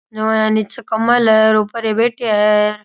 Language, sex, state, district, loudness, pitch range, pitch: Rajasthani, male, Rajasthan, Nagaur, -15 LUFS, 215-230 Hz, 220 Hz